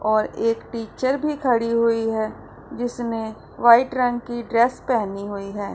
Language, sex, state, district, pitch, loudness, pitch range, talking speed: Hindi, female, Punjab, Pathankot, 230 Hz, -22 LUFS, 220-245 Hz, 155 wpm